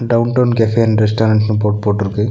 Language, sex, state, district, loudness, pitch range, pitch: Tamil, male, Tamil Nadu, Nilgiris, -14 LUFS, 105-115 Hz, 110 Hz